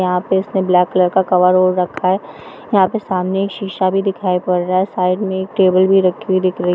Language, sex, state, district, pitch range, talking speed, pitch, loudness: Hindi, female, Bihar, Kishanganj, 180-190 Hz, 275 wpm, 185 Hz, -16 LUFS